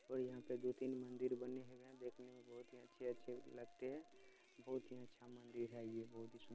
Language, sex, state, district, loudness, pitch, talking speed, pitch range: Hindi, male, Bihar, Supaul, -50 LUFS, 125 Hz, 240 wpm, 120-125 Hz